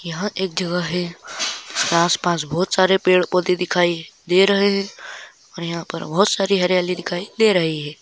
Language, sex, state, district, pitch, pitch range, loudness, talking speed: Hindi, male, Chhattisgarh, Balrampur, 180 Hz, 170-190 Hz, -19 LUFS, 170 wpm